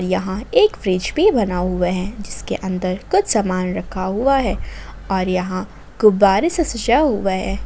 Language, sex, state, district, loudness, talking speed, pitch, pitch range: Hindi, female, Jharkhand, Ranchi, -18 LUFS, 165 wpm, 195 Hz, 185-235 Hz